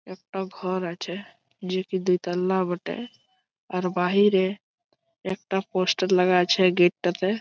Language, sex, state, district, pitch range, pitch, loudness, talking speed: Bengali, male, West Bengal, Malda, 180-195 Hz, 185 Hz, -24 LUFS, 105 wpm